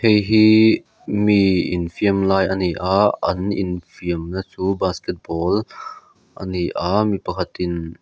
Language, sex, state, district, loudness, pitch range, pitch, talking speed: Mizo, male, Mizoram, Aizawl, -19 LUFS, 90-105 Hz, 95 Hz, 125 wpm